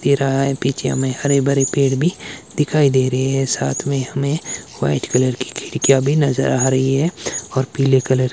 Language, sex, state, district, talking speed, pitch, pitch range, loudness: Hindi, male, Himachal Pradesh, Shimla, 200 wpm, 135 Hz, 130-140 Hz, -18 LUFS